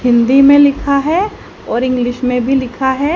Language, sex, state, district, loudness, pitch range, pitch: Hindi, female, Haryana, Charkhi Dadri, -12 LUFS, 250-285 Hz, 265 Hz